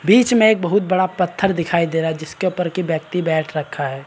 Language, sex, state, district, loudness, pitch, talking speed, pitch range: Hindi, male, Bihar, Araria, -18 LUFS, 175 Hz, 235 wpm, 160-190 Hz